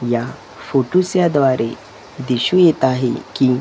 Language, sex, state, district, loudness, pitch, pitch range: Marathi, male, Maharashtra, Gondia, -17 LUFS, 130 Hz, 125-165 Hz